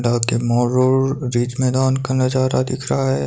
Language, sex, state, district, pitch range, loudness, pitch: Hindi, male, Himachal Pradesh, Shimla, 120-130 Hz, -18 LUFS, 130 Hz